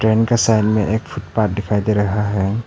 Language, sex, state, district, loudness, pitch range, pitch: Hindi, male, Arunachal Pradesh, Papum Pare, -18 LUFS, 105-110 Hz, 110 Hz